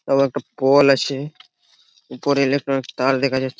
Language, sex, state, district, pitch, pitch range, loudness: Bengali, male, West Bengal, Purulia, 135 Hz, 135-140 Hz, -19 LUFS